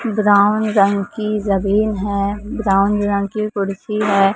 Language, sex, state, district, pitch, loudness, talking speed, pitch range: Hindi, male, Maharashtra, Mumbai Suburban, 205 Hz, -17 LUFS, 135 wpm, 200-210 Hz